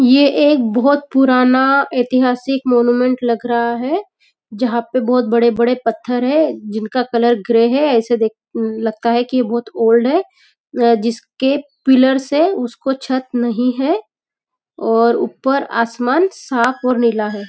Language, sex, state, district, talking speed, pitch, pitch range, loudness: Hindi, female, Maharashtra, Nagpur, 150 wpm, 250 Hz, 235-270 Hz, -15 LUFS